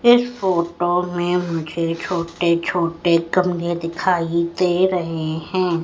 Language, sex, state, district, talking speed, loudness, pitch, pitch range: Hindi, female, Madhya Pradesh, Katni, 105 wpm, -20 LUFS, 175 Hz, 170-180 Hz